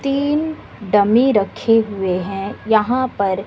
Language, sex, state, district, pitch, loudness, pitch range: Hindi, female, Bihar, West Champaran, 215 Hz, -17 LUFS, 195-260 Hz